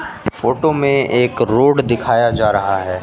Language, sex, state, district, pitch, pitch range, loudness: Hindi, male, Bihar, West Champaran, 120 Hz, 100-140 Hz, -15 LUFS